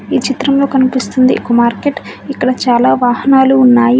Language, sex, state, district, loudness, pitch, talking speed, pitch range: Telugu, female, Telangana, Hyderabad, -11 LUFS, 255 Hz, 150 wpm, 245-270 Hz